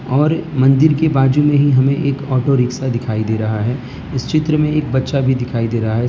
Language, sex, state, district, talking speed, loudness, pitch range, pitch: Hindi, male, Gujarat, Valsad, 235 wpm, -16 LUFS, 125-145 Hz, 135 Hz